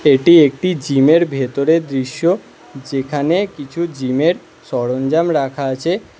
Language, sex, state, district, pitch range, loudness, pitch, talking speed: Bengali, male, Karnataka, Bangalore, 135-170 Hz, -16 LUFS, 145 Hz, 105 wpm